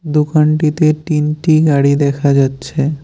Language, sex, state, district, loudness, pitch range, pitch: Bengali, male, West Bengal, Cooch Behar, -13 LUFS, 140-155 Hz, 150 Hz